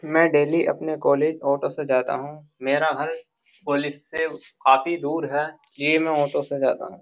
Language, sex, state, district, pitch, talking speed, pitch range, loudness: Hindi, male, Uttar Pradesh, Jyotiba Phule Nagar, 150 Hz, 180 wpm, 140-160 Hz, -23 LUFS